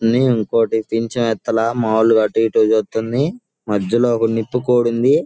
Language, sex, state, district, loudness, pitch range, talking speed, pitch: Telugu, male, Andhra Pradesh, Guntur, -17 LUFS, 110-120 Hz, 125 wpm, 115 Hz